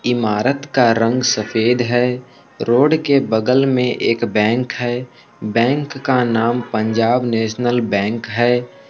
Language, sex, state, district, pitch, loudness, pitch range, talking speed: Hindi, male, Jharkhand, Palamu, 120 Hz, -17 LUFS, 115-125 Hz, 130 wpm